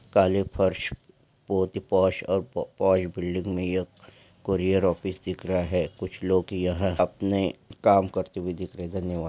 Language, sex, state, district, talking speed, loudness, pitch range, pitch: Hindi, male, West Bengal, Malda, 170 wpm, -26 LUFS, 90-95 Hz, 95 Hz